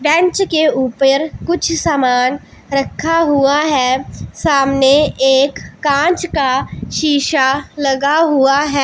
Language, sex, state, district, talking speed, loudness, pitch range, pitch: Hindi, female, Punjab, Pathankot, 110 wpm, -14 LUFS, 270-315 Hz, 280 Hz